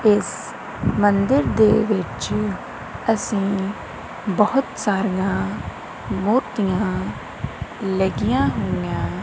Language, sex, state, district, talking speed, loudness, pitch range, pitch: Punjabi, female, Punjab, Kapurthala, 65 wpm, -21 LUFS, 190-215 Hz, 200 Hz